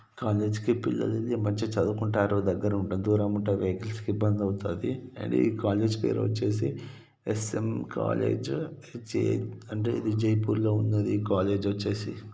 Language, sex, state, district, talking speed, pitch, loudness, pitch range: Telugu, male, Telangana, Nalgonda, 140 wpm, 105 Hz, -29 LUFS, 100-110 Hz